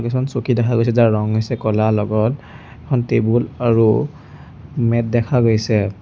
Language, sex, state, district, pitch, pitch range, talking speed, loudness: Assamese, male, Assam, Sonitpur, 115 Hz, 110-125 Hz, 150 wpm, -17 LUFS